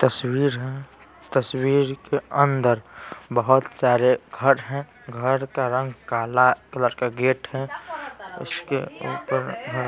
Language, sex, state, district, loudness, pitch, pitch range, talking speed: Hindi, male, Bihar, Patna, -23 LUFS, 130 Hz, 125-135 Hz, 115 wpm